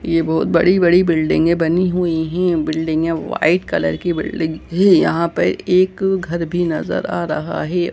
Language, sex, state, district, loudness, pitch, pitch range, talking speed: Hindi, male, Jharkhand, Jamtara, -17 LUFS, 170 Hz, 160-180 Hz, 175 wpm